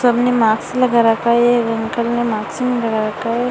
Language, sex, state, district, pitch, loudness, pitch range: Hindi, female, Bihar, Saharsa, 235 Hz, -16 LUFS, 225-245 Hz